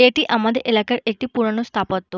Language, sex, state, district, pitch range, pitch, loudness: Bengali, female, West Bengal, Purulia, 215-245 Hz, 230 Hz, -20 LUFS